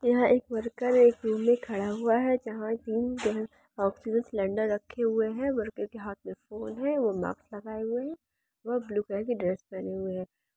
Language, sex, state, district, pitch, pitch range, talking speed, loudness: Hindi, female, Andhra Pradesh, Chittoor, 225 Hz, 210-240 Hz, 175 wpm, -29 LUFS